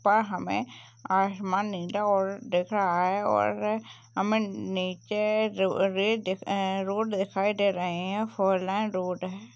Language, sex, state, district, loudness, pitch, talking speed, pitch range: Hindi, female, Uttar Pradesh, Jalaun, -28 LUFS, 195 Hz, 140 wpm, 180-205 Hz